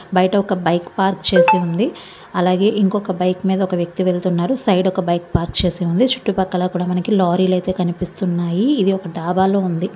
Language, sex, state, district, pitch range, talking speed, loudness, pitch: Telugu, female, Andhra Pradesh, Visakhapatnam, 175-195 Hz, 260 wpm, -17 LUFS, 185 Hz